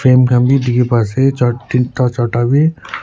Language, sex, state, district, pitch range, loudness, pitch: Nagamese, male, Nagaland, Kohima, 120-130 Hz, -13 LUFS, 125 Hz